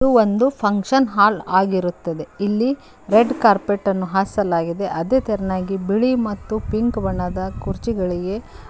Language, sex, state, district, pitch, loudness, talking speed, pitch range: Kannada, female, Karnataka, Koppal, 205 Hz, -20 LUFS, 115 wpm, 190-225 Hz